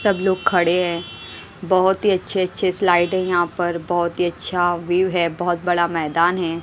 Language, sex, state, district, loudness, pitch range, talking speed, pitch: Hindi, female, Maharashtra, Mumbai Suburban, -19 LUFS, 170-185 Hz, 180 wpm, 175 Hz